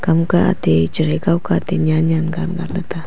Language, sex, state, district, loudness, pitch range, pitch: Wancho, female, Arunachal Pradesh, Longding, -17 LUFS, 160-175 Hz, 165 Hz